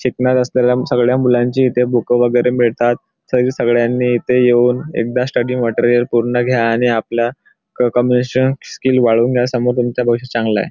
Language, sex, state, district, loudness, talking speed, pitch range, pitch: Marathi, male, Maharashtra, Nagpur, -15 LUFS, 160 wpm, 120-125 Hz, 125 Hz